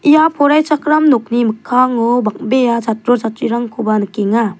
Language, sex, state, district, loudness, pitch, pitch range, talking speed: Garo, female, Meghalaya, South Garo Hills, -14 LUFS, 240 Hz, 225-285 Hz, 105 wpm